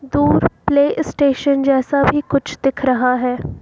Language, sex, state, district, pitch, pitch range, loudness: Hindi, female, Uttar Pradesh, Lucknow, 275 Hz, 260-280 Hz, -16 LUFS